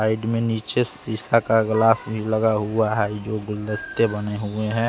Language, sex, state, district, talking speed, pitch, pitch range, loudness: Hindi, male, Bihar, West Champaran, 185 wpm, 110 Hz, 105-115 Hz, -22 LUFS